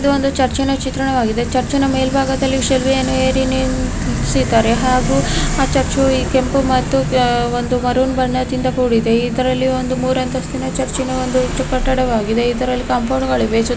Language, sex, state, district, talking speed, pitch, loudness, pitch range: Kannada, female, Karnataka, Mysore, 120 wpm, 255 Hz, -16 LUFS, 240-265 Hz